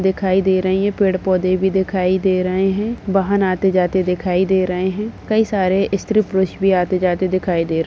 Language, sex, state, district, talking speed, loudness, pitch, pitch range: Hindi, female, Uttar Pradesh, Budaun, 215 wpm, -17 LUFS, 190 Hz, 185-195 Hz